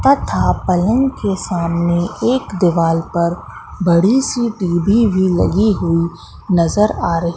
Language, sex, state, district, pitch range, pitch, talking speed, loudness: Hindi, female, Madhya Pradesh, Katni, 170-215 Hz, 180 Hz, 130 wpm, -16 LUFS